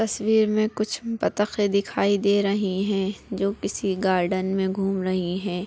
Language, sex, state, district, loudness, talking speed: Hindi, female, Chhattisgarh, Bilaspur, -24 LUFS, 160 wpm